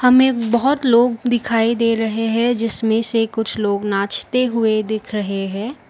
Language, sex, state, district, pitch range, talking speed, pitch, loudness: Hindi, female, Assam, Kamrup Metropolitan, 220-240 Hz, 155 wpm, 225 Hz, -18 LUFS